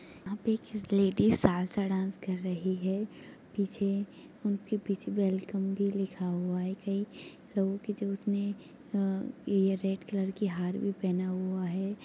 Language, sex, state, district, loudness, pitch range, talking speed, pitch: Hindi, female, Chhattisgarh, Raigarh, -32 LUFS, 190-205 Hz, 155 wpm, 195 Hz